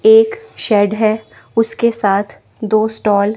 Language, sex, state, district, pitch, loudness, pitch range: Hindi, female, Chandigarh, Chandigarh, 220 Hz, -15 LUFS, 210-235 Hz